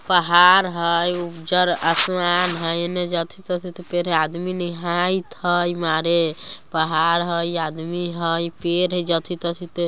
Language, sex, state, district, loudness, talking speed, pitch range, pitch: Bajjika, female, Bihar, Vaishali, -20 LUFS, 160 wpm, 170-180 Hz, 175 Hz